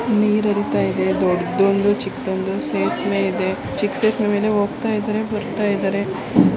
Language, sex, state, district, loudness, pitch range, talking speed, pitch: Kannada, female, Karnataka, Belgaum, -20 LUFS, 190-215 Hz, 90 wpm, 205 Hz